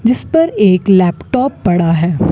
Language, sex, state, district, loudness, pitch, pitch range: Hindi, female, Rajasthan, Bikaner, -12 LUFS, 190 Hz, 175-255 Hz